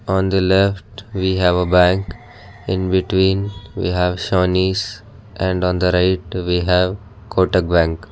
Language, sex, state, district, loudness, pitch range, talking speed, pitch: English, male, Karnataka, Bangalore, -18 LUFS, 90-100 Hz, 150 wpm, 95 Hz